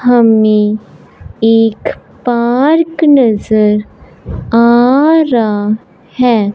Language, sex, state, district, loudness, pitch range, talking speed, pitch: Hindi, male, Punjab, Fazilka, -11 LUFS, 215-250 Hz, 65 wpm, 235 Hz